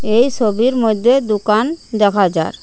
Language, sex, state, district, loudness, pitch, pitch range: Bengali, female, Assam, Hailakandi, -15 LUFS, 220 Hz, 210-245 Hz